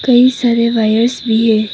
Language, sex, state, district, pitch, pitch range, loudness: Hindi, female, Arunachal Pradesh, Papum Pare, 235 Hz, 225-245 Hz, -12 LUFS